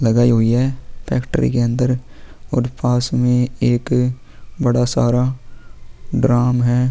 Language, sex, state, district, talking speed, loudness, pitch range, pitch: Hindi, male, Chhattisgarh, Sukma, 130 wpm, -17 LUFS, 120-125 Hz, 125 Hz